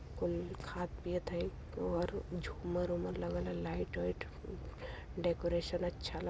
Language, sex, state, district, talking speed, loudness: Bhojpuri, female, Uttar Pradesh, Varanasi, 115 wpm, -40 LUFS